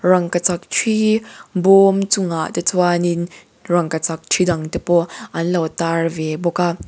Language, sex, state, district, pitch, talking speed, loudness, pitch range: Mizo, female, Mizoram, Aizawl, 175 Hz, 155 wpm, -18 LUFS, 165-185 Hz